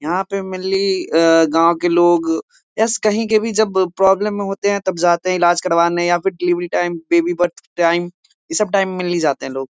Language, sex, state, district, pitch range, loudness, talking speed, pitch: Hindi, male, Bihar, Muzaffarpur, 170-195 Hz, -17 LUFS, 240 wpm, 175 Hz